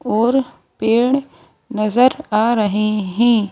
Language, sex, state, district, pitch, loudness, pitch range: Hindi, female, Madhya Pradesh, Bhopal, 230 Hz, -17 LUFS, 215-250 Hz